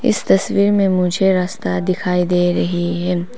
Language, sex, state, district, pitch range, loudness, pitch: Hindi, female, Arunachal Pradesh, Papum Pare, 175-195 Hz, -17 LUFS, 180 Hz